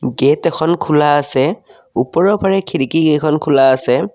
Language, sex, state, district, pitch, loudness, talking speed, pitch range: Assamese, male, Assam, Kamrup Metropolitan, 155 Hz, -14 LUFS, 145 wpm, 140-170 Hz